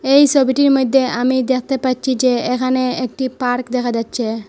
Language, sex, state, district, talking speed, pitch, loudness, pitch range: Bengali, female, Assam, Hailakandi, 175 wpm, 255 Hz, -16 LUFS, 245-265 Hz